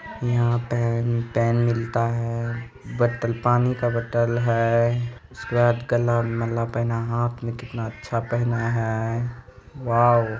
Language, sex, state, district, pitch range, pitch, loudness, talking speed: Hindi, male, Bihar, East Champaran, 115-120 Hz, 120 Hz, -23 LUFS, 120 wpm